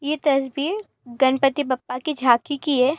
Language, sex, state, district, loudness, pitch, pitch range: Hindi, female, Uttar Pradesh, Gorakhpur, -21 LUFS, 275 Hz, 260-295 Hz